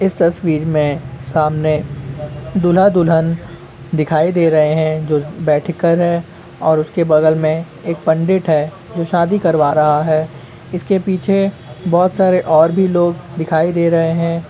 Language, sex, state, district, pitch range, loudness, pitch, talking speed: Hindi, male, Uttar Pradesh, Ghazipur, 155-175 Hz, -15 LUFS, 165 Hz, 150 wpm